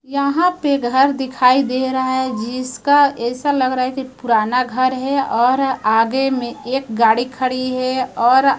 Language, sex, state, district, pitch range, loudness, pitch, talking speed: Hindi, male, Chhattisgarh, Raipur, 250-270 Hz, -17 LUFS, 255 Hz, 170 wpm